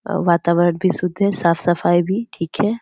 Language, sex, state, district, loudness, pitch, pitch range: Hindi, female, Bihar, Purnia, -18 LUFS, 180 Hz, 170-200 Hz